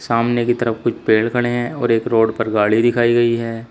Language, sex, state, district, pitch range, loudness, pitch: Hindi, male, Uttar Pradesh, Shamli, 115-120 Hz, -17 LUFS, 115 Hz